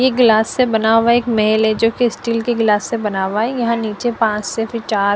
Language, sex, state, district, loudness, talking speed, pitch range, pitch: Hindi, female, Punjab, Fazilka, -16 LUFS, 265 wpm, 215-235 Hz, 225 Hz